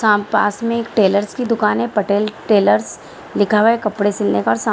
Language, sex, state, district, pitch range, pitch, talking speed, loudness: Hindi, female, Bihar, Saharsa, 200-220 Hz, 210 Hz, 230 wpm, -16 LUFS